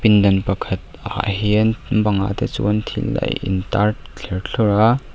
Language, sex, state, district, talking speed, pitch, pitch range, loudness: Mizo, male, Mizoram, Aizawl, 140 wpm, 105 Hz, 100-110 Hz, -19 LUFS